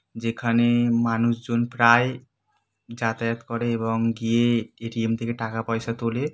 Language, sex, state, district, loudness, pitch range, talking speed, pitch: Bengali, male, West Bengal, Kolkata, -23 LUFS, 115-120 Hz, 115 wpm, 115 Hz